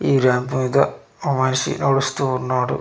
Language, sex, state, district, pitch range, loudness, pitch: Telugu, male, Andhra Pradesh, Manyam, 130-135 Hz, -20 LUFS, 130 Hz